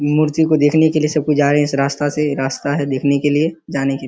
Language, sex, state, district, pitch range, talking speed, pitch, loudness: Hindi, male, Bihar, Kishanganj, 140-155 Hz, 310 wpm, 145 Hz, -16 LUFS